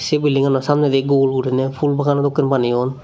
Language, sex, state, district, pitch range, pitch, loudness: Chakma, male, Tripura, Dhalai, 135-145 Hz, 135 Hz, -17 LUFS